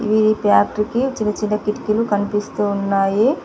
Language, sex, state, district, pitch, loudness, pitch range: Telugu, female, Telangana, Mahabubabad, 210 Hz, -18 LUFS, 205-215 Hz